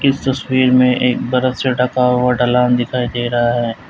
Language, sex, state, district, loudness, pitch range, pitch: Hindi, male, Uttar Pradesh, Lalitpur, -15 LUFS, 125-130 Hz, 125 Hz